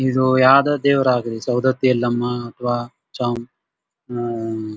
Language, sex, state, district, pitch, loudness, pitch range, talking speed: Kannada, male, Karnataka, Dharwad, 125 Hz, -19 LUFS, 120-130 Hz, 125 wpm